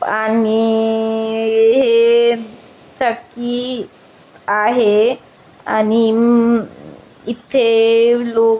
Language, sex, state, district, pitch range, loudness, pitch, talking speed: Marathi, female, Maharashtra, Chandrapur, 225-235 Hz, -14 LUFS, 230 Hz, 55 wpm